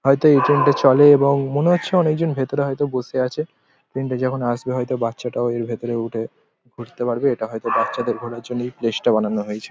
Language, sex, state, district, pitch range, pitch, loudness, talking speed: Bengali, male, West Bengal, Paschim Medinipur, 115-140 Hz, 125 Hz, -19 LUFS, 205 wpm